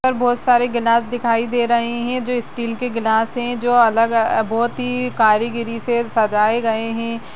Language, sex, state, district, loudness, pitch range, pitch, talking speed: Hindi, female, Uttarakhand, Uttarkashi, -18 LUFS, 230-245 Hz, 235 Hz, 180 wpm